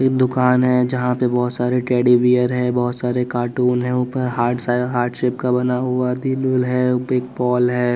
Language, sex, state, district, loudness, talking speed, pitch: Hindi, male, Bihar, West Champaran, -18 LUFS, 205 wpm, 125 Hz